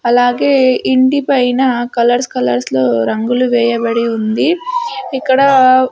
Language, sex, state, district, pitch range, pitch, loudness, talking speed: Telugu, female, Andhra Pradesh, Sri Satya Sai, 235-265 Hz, 250 Hz, -13 LUFS, 100 wpm